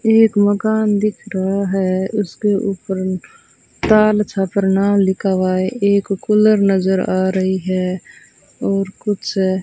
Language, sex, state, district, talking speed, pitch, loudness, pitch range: Hindi, female, Rajasthan, Bikaner, 130 wpm, 195 Hz, -17 LUFS, 190-210 Hz